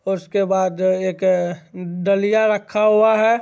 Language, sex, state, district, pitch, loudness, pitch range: Maithili, male, Bihar, Supaul, 195 Hz, -18 LUFS, 185-215 Hz